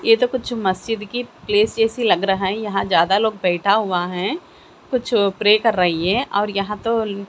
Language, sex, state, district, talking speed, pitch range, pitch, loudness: Hindi, female, Haryana, Jhajjar, 200 wpm, 195-225 Hz, 210 Hz, -19 LUFS